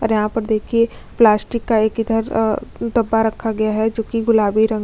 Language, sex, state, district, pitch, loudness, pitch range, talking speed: Hindi, female, Chhattisgarh, Kabirdham, 225 Hz, -18 LUFS, 215-225 Hz, 200 wpm